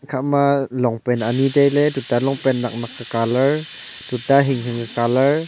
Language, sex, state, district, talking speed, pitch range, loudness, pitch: Wancho, male, Arunachal Pradesh, Longding, 175 wpm, 120-140 Hz, -18 LUFS, 130 Hz